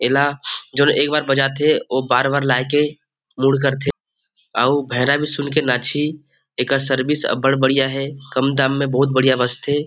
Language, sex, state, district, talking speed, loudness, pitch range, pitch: Chhattisgarhi, male, Chhattisgarh, Rajnandgaon, 180 wpm, -18 LUFS, 130-145 Hz, 135 Hz